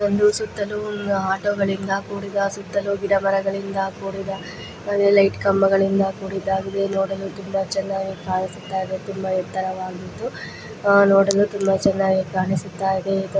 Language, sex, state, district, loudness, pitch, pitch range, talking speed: Kannada, female, Karnataka, Raichur, -21 LUFS, 195 Hz, 190-200 Hz, 115 wpm